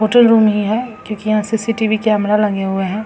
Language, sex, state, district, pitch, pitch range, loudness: Hindi, female, Bihar, Samastipur, 215 Hz, 210-225 Hz, -15 LUFS